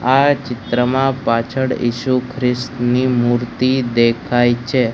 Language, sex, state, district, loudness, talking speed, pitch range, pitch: Gujarati, male, Gujarat, Gandhinagar, -17 LUFS, 95 wpm, 120-130 Hz, 125 Hz